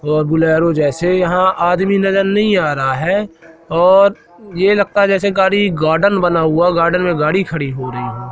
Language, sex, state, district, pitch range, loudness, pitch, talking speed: Hindi, male, Madhya Pradesh, Katni, 160-195 Hz, -14 LUFS, 175 Hz, 195 wpm